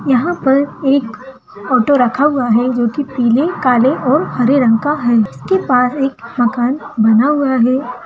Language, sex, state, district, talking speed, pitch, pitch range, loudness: Hindi, female, Bihar, Darbhanga, 165 wpm, 255 Hz, 240-280 Hz, -14 LUFS